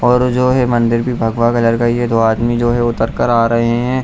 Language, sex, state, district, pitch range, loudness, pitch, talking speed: Hindi, male, Bihar, Jamui, 115-125 Hz, -14 LUFS, 120 Hz, 310 wpm